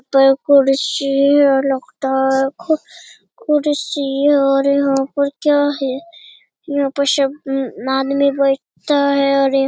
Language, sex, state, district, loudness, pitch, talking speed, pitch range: Hindi, female, Bihar, Lakhisarai, -16 LUFS, 275 Hz, 135 wpm, 270-285 Hz